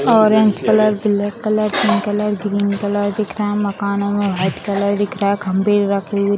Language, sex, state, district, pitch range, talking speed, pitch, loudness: Hindi, female, Bihar, Vaishali, 200-210 Hz, 205 wpm, 205 Hz, -16 LUFS